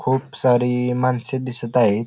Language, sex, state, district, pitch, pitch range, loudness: Marathi, male, Maharashtra, Pune, 125 Hz, 120-130 Hz, -20 LUFS